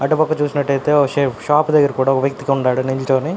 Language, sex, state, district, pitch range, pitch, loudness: Telugu, male, Andhra Pradesh, Anantapur, 135-150 Hz, 140 Hz, -17 LUFS